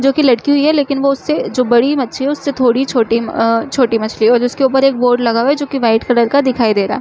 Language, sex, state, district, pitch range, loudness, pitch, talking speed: Chhattisgarhi, female, Chhattisgarh, Jashpur, 235-275 Hz, -13 LUFS, 255 Hz, 325 wpm